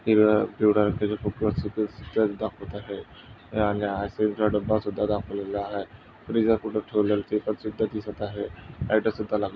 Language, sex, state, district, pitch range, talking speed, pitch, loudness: Marathi, male, Maharashtra, Sindhudurg, 105-110 Hz, 105 wpm, 105 Hz, -26 LUFS